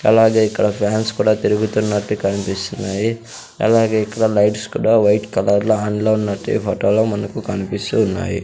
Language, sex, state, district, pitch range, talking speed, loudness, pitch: Telugu, male, Andhra Pradesh, Sri Satya Sai, 100-110 Hz, 155 wpm, -17 LUFS, 105 Hz